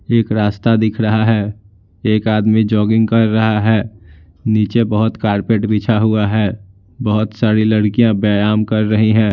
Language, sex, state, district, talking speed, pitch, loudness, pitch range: Hindi, male, Bihar, Patna, 155 wpm, 110 Hz, -15 LUFS, 105-110 Hz